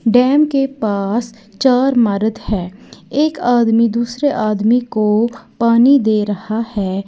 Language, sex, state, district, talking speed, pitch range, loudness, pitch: Hindi, female, Uttar Pradesh, Lalitpur, 125 wpm, 215-250 Hz, -15 LUFS, 230 Hz